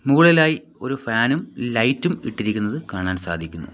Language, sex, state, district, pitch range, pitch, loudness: Malayalam, male, Kerala, Kollam, 105-140 Hz, 120 Hz, -20 LUFS